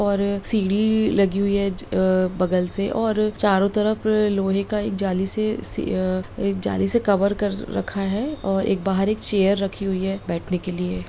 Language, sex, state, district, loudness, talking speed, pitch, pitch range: Hindi, female, Bihar, Jamui, -20 LUFS, 180 wpm, 200 Hz, 190-210 Hz